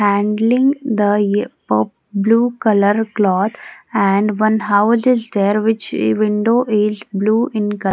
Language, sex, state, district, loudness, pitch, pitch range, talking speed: English, female, Odisha, Nuapada, -16 LUFS, 210 Hz, 205-225 Hz, 145 wpm